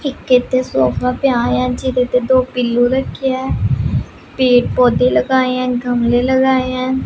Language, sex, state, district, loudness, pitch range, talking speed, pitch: Punjabi, female, Punjab, Pathankot, -15 LUFS, 245-260 Hz, 145 wpm, 250 Hz